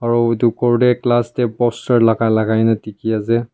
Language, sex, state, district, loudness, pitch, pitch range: Nagamese, male, Nagaland, Kohima, -16 LUFS, 115 Hz, 110-120 Hz